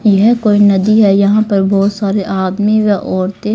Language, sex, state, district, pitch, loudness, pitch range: Hindi, female, Haryana, Rohtak, 205 Hz, -12 LUFS, 195-210 Hz